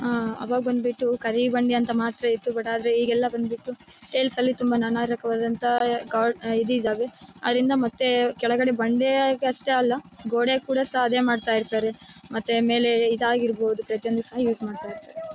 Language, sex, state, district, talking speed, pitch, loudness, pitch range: Kannada, female, Karnataka, Bellary, 140 wpm, 235 Hz, -24 LUFS, 230-250 Hz